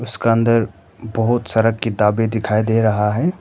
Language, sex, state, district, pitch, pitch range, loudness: Hindi, male, Arunachal Pradesh, Papum Pare, 115 Hz, 110-115 Hz, -17 LUFS